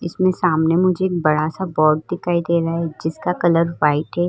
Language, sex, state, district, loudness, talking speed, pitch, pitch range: Hindi, female, Uttar Pradesh, Muzaffarnagar, -19 LUFS, 210 wpm, 170 Hz, 160-180 Hz